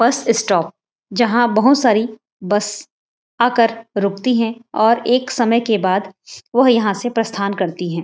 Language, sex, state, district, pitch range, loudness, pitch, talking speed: Hindi, female, Chhattisgarh, Raigarh, 200-240 Hz, -17 LUFS, 225 Hz, 150 wpm